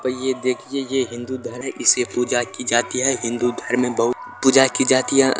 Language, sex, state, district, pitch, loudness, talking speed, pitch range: Maithili, male, Bihar, Supaul, 125 Hz, -20 LUFS, 200 wpm, 120-130 Hz